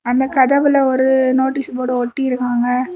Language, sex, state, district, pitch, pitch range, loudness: Tamil, female, Tamil Nadu, Kanyakumari, 260 Hz, 250-265 Hz, -16 LUFS